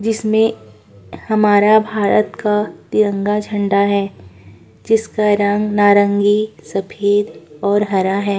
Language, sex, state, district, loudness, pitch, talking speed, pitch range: Hindi, female, Uttarakhand, Tehri Garhwal, -16 LUFS, 205 Hz, 95 wpm, 195-210 Hz